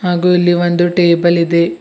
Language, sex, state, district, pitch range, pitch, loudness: Kannada, male, Karnataka, Bidar, 170-175 Hz, 175 Hz, -12 LUFS